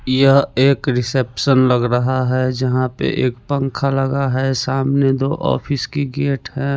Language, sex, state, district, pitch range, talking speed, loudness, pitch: Hindi, male, Chandigarh, Chandigarh, 130-140 Hz, 170 wpm, -17 LUFS, 135 Hz